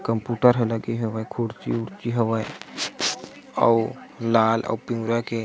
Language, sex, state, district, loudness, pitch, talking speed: Chhattisgarhi, male, Chhattisgarh, Sukma, -24 LUFS, 115 Hz, 145 wpm